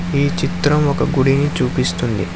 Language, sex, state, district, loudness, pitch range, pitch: Telugu, male, Telangana, Hyderabad, -17 LUFS, 140-150 Hz, 150 Hz